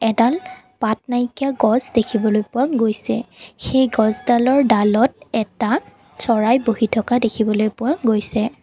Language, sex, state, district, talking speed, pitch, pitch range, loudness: Assamese, female, Assam, Kamrup Metropolitan, 120 wpm, 230 Hz, 220-250 Hz, -18 LUFS